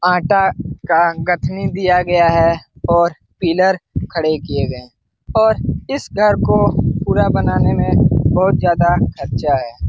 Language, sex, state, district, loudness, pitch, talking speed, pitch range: Hindi, male, Bihar, Lakhisarai, -15 LUFS, 170 Hz, 135 wpm, 155-185 Hz